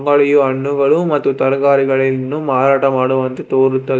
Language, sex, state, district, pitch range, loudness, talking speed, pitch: Kannada, male, Karnataka, Bangalore, 130-140 Hz, -14 LUFS, 105 wpm, 135 Hz